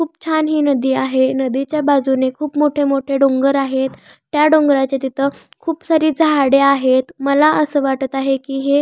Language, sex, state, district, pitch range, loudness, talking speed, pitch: Marathi, female, Maharashtra, Pune, 270-300 Hz, -16 LUFS, 170 wpm, 275 Hz